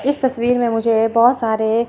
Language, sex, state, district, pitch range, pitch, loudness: Hindi, female, Chandigarh, Chandigarh, 225-245 Hz, 235 Hz, -16 LUFS